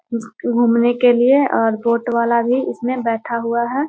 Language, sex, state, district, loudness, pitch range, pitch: Hindi, female, Bihar, Muzaffarpur, -17 LUFS, 235-250 Hz, 235 Hz